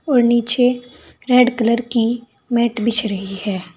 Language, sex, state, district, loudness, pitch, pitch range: Hindi, female, Uttar Pradesh, Saharanpur, -17 LUFS, 235 Hz, 225-245 Hz